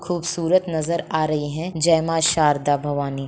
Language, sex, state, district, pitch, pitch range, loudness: Hindi, female, Jharkhand, Sahebganj, 160 Hz, 145-170 Hz, -21 LUFS